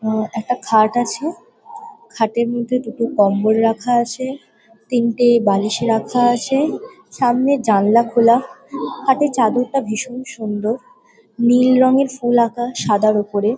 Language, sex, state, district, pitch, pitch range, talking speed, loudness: Bengali, female, West Bengal, Kolkata, 240 Hz, 220-260 Hz, 120 wpm, -17 LUFS